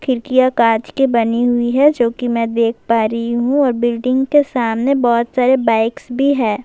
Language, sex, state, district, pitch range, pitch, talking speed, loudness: Urdu, female, Bihar, Saharsa, 230-260 Hz, 240 Hz, 200 wpm, -15 LUFS